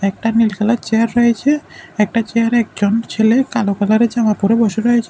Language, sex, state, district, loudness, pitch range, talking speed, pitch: Bengali, male, Tripura, West Tripura, -15 LUFS, 215-235 Hz, 175 wpm, 225 Hz